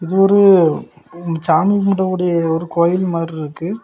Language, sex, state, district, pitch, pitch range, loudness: Tamil, male, Tamil Nadu, Kanyakumari, 175 Hz, 165-190 Hz, -15 LUFS